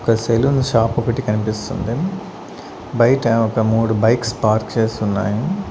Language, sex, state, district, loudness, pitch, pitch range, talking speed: Telugu, male, Andhra Pradesh, Sri Satya Sai, -18 LUFS, 115 Hz, 110-125 Hz, 125 wpm